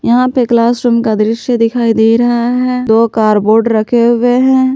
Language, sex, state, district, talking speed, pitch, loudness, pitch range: Hindi, female, Jharkhand, Palamu, 190 wpm, 235 Hz, -11 LUFS, 225-245 Hz